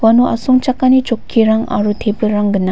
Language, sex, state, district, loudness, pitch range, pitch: Garo, female, Meghalaya, West Garo Hills, -14 LUFS, 210-250 Hz, 225 Hz